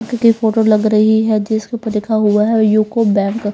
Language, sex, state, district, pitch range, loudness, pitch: Hindi, female, Bihar, Patna, 215-225 Hz, -14 LUFS, 220 Hz